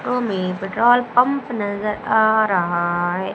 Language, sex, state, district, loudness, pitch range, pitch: Hindi, female, Madhya Pradesh, Umaria, -19 LUFS, 185-240 Hz, 210 Hz